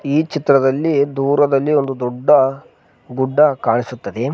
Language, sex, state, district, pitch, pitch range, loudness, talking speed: Kannada, male, Karnataka, Koppal, 135 Hz, 125-145 Hz, -16 LUFS, 95 wpm